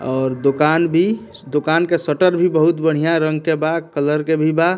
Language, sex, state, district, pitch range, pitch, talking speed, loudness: Bhojpuri, male, Bihar, Muzaffarpur, 150-170 Hz, 160 Hz, 200 wpm, -17 LUFS